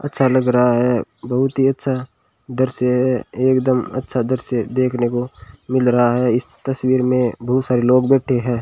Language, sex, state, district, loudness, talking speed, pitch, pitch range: Hindi, male, Rajasthan, Bikaner, -18 LUFS, 175 wpm, 125 Hz, 125-130 Hz